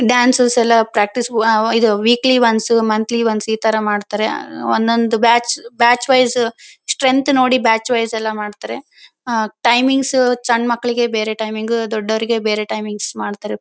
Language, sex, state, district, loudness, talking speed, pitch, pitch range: Kannada, female, Karnataka, Bellary, -16 LUFS, 145 wpm, 230 Hz, 220-245 Hz